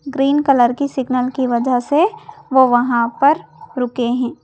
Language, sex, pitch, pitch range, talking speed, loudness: Hindi, female, 260 Hz, 245-285 Hz, 160 wpm, -16 LUFS